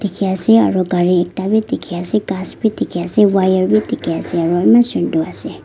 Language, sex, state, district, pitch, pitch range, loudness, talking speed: Nagamese, female, Nagaland, Kohima, 190 Hz, 175-215 Hz, -15 LUFS, 190 wpm